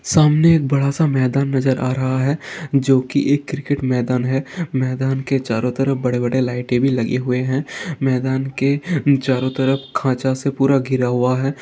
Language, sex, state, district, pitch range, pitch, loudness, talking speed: Hindi, male, Rajasthan, Nagaur, 130-140 Hz, 135 Hz, -18 LUFS, 195 wpm